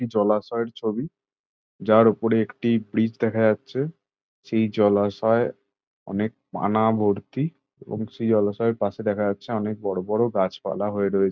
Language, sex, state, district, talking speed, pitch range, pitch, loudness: Bengali, male, West Bengal, Jalpaiguri, 125 wpm, 105-115 Hz, 110 Hz, -23 LUFS